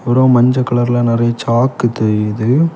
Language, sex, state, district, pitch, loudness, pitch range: Tamil, male, Tamil Nadu, Kanyakumari, 120 Hz, -14 LUFS, 115-130 Hz